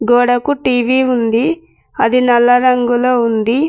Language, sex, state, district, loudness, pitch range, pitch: Telugu, female, Telangana, Mahabubabad, -13 LUFS, 240-255 Hz, 245 Hz